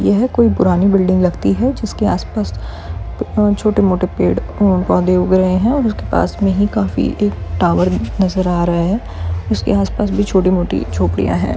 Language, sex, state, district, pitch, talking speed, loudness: Hindi, female, Chhattisgarh, Bilaspur, 180 Hz, 175 wpm, -15 LUFS